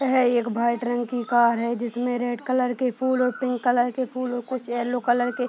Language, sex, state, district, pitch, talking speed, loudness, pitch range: Hindi, female, Bihar, Purnia, 245 Hz, 250 wpm, -24 LUFS, 240-255 Hz